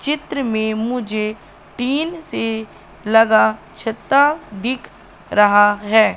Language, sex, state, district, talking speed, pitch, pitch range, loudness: Hindi, female, Madhya Pradesh, Katni, 95 wpm, 225 Hz, 215-265 Hz, -18 LUFS